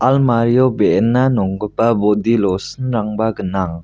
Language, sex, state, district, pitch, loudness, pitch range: Garo, male, Meghalaya, West Garo Hills, 115 Hz, -16 LUFS, 105-120 Hz